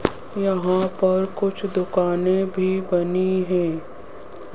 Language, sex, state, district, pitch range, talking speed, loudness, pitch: Hindi, female, Rajasthan, Jaipur, 180-190 Hz, 105 wpm, -22 LUFS, 185 Hz